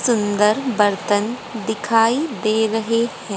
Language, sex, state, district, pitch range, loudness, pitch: Hindi, female, Haryana, Jhajjar, 210-230 Hz, -19 LUFS, 220 Hz